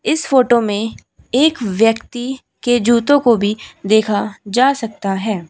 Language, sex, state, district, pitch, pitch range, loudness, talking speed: Hindi, female, Uttar Pradesh, Shamli, 225 Hz, 210-250 Hz, -16 LUFS, 140 wpm